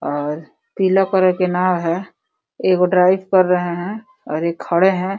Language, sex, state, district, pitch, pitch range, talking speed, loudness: Hindi, female, Uttar Pradesh, Deoria, 185 Hz, 175-190 Hz, 175 wpm, -17 LUFS